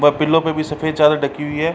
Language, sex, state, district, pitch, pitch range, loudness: Hindi, male, Uttar Pradesh, Varanasi, 150 Hz, 150-155 Hz, -17 LUFS